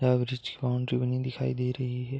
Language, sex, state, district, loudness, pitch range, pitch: Hindi, male, Uttar Pradesh, Gorakhpur, -30 LUFS, 125-130 Hz, 125 Hz